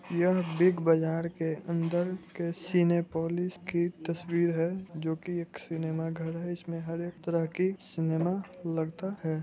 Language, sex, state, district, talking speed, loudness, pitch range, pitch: Hindi, male, Bihar, Muzaffarpur, 155 wpm, -31 LUFS, 165-175 Hz, 170 Hz